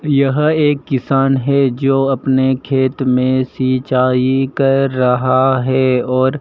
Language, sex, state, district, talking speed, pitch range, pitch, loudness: Hindi, male, Madhya Pradesh, Dhar, 120 wpm, 130-135 Hz, 130 Hz, -14 LUFS